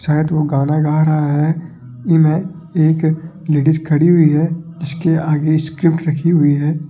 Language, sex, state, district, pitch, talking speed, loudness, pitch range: Marwari, male, Rajasthan, Nagaur, 155 Hz, 155 wpm, -15 LUFS, 150-165 Hz